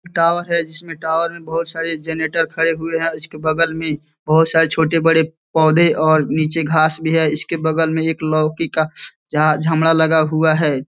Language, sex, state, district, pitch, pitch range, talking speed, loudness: Hindi, male, Bihar, East Champaran, 160 Hz, 155-165 Hz, 195 wpm, -16 LUFS